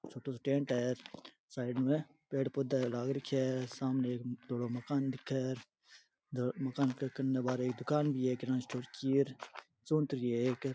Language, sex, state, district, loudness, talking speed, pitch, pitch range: Rajasthani, male, Rajasthan, Churu, -36 LUFS, 165 wpm, 130 Hz, 125-140 Hz